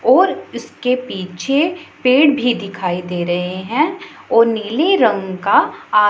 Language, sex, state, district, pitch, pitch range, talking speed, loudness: Hindi, female, Punjab, Pathankot, 230 Hz, 185-275 Hz, 135 wpm, -16 LUFS